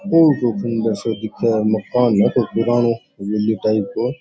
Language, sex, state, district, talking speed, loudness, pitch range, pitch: Rajasthani, male, Rajasthan, Churu, 170 wpm, -18 LUFS, 110-120 Hz, 115 Hz